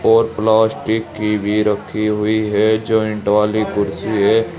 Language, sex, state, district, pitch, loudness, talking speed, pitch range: Hindi, male, Uttar Pradesh, Saharanpur, 110 Hz, -17 LUFS, 145 wpm, 105-110 Hz